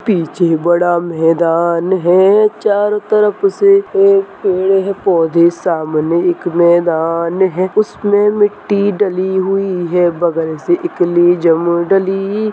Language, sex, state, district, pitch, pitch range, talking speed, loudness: Hindi, male, Chhattisgarh, Balrampur, 185 Hz, 170-205 Hz, 120 wpm, -13 LUFS